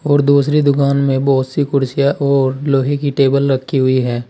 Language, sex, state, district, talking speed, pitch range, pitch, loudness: Hindi, male, Uttar Pradesh, Saharanpur, 195 wpm, 135-140 Hz, 140 Hz, -14 LUFS